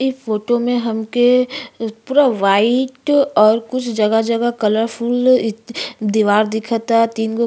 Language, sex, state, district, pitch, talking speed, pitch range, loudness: Bhojpuri, female, Uttar Pradesh, Ghazipur, 230 Hz, 130 wpm, 220-250 Hz, -16 LUFS